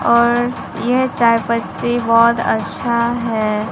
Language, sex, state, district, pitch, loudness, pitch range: Hindi, female, Bihar, Katihar, 235 Hz, -16 LUFS, 230-240 Hz